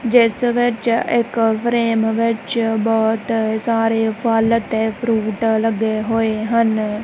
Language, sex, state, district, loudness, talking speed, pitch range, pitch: Punjabi, female, Punjab, Kapurthala, -18 LUFS, 110 wpm, 220-230 Hz, 225 Hz